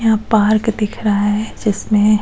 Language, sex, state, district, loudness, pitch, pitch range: Hindi, female, Goa, North and South Goa, -16 LUFS, 215 Hz, 210-220 Hz